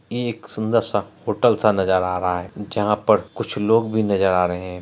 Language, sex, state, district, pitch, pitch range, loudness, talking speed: Hindi, male, Bihar, Araria, 105 Hz, 90-110 Hz, -20 LUFS, 225 wpm